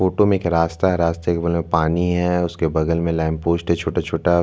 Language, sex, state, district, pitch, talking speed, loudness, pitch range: Hindi, male, Chhattisgarh, Bastar, 85 Hz, 230 wpm, -20 LUFS, 85-90 Hz